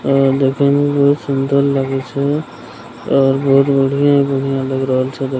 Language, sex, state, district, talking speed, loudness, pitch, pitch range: Maithili, male, Bihar, Begusarai, 145 wpm, -15 LUFS, 135 Hz, 135-140 Hz